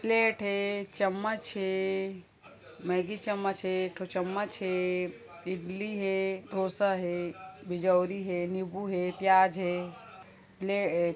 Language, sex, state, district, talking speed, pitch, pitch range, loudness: Chhattisgarhi, female, Chhattisgarh, Kabirdham, 115 wpm, 190 Hz, 180-200 Hz, -31 LUFS